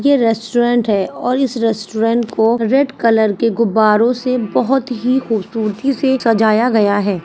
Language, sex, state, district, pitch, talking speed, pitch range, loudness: Hindi, female, Uttar Pradesh, Ghazipur, 230 Hz, 155 wpm, 220-250 Hz, -15 LUFS